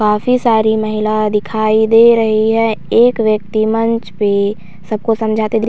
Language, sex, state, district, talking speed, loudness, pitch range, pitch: Hindi, female, Chhattisgarh, Raigarh, 160 wpm, -13 LUFS, 215-225 Hz, 220 Hz